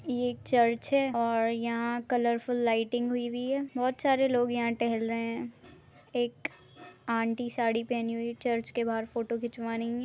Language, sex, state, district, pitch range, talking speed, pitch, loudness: Hindi, female, Maharashtra, Aurangabad, 230-245 Hz, 165 wpm, 235 Hz, -30 LUFS